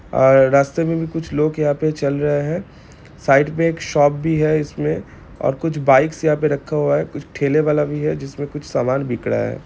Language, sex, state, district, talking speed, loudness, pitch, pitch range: Hindi, male, Bihar, Gopalganj, 230 wpm, -18 LUFS, 150 Hz, 140-155 Hz